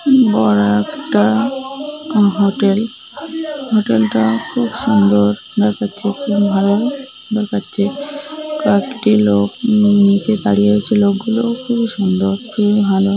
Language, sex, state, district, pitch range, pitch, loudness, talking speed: Bengali, female, West Bengal, North 24 Parganas, 195-245 Hz, 210 Hz, -15 LUFS, 100 wpm